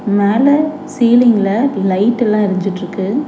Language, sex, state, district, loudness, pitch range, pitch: Tamil, female, Tamil Nadu, Chennai, -13 LUFS, 195-260 Hz, 215 Hz